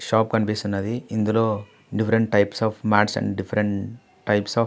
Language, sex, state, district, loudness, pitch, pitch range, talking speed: Telugu, male, Andhra Pradesh, Visakhapatnam, -23 LUFS, 110 Hz, 105-115 Hz, 155 wpm